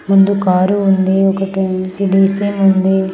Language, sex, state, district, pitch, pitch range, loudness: Telugu, female, Telangana, Karimnagar, 195 Hz, 190-195 Hz, -13 LUFS